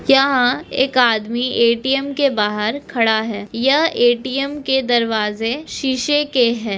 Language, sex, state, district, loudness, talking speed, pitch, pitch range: Hindi, female, Bihar, East Champaran, -17 LUFS, 130 wpm, 245 Hz, 230-275 Hz